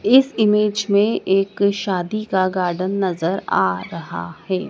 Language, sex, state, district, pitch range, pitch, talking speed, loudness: Hindi, female, Madhya Pradesh, Dhar, 185-210 Hz, 195 Hz, 140 wpm, -19 LUFS